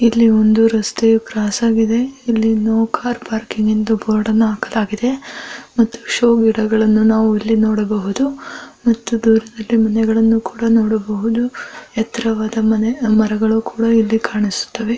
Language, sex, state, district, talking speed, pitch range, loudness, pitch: Kannada, female, Karnataka, Bellary, 90 wpm, 220-230 Hz, -16 LUFS, 225 Hz